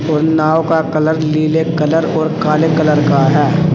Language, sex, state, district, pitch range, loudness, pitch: Hindi, male, Uttar Pradesh, Saharanpur, 155-160 Hz, -13 LUFS, 155 Hz